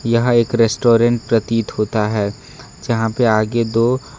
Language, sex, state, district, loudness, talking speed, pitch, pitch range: Hindi, male, Karnataka, Bangalore, -16 LUFS, 145 wpm, 115 Hz, 110-120 Hz